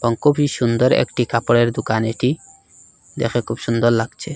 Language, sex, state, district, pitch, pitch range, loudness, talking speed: Bengali, male, Assam, Hailakandi, 115 Hz, 115-125 Hz, -19 LUFS, 150 wpm